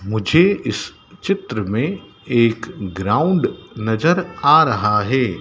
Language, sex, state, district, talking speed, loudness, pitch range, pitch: Hindi, male, Madhya Pradesh, Dhar, 110 wpm, -18 LUFS, 105-165 Hz, 115 Hz